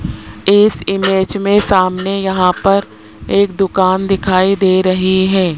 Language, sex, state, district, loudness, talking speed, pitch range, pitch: Hindi, male, Rajasthan, Jaipur, -13 LUFS, 130 wpm, 185-195 Hz, 190 Hz